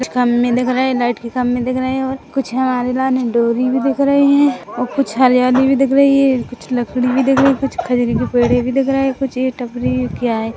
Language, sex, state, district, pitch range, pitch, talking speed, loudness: Hindi, female, Chhattisgarh, Rajnandgaon, 245-270 Hz, 255 Hz, 245 wpm, -15 LUFS